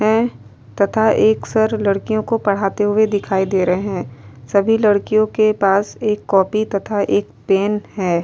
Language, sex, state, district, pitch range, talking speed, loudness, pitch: Hindi, female, Uttar Pradesh, Varanasi, 195-215 Hz, 160 wpm, -17 LUFS, 205 Hz